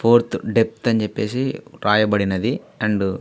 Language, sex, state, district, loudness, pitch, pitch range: Telugu, male, Andhra Pradesh, Visakhapatnam, -20 LUFS, 110 Hz, 105-120 Hz